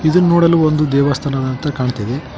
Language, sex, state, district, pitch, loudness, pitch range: Kannada, male, Karnataka, Koppal, 140 Hz, -15 LUFS, 130-155 Hz